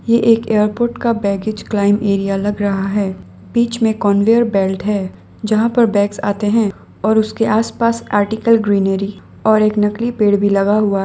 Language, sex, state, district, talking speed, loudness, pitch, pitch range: Hindi, female, Assam, Sonitpur, 175 wpm, -16 LUFS, 210 Hz, 200-225 Hz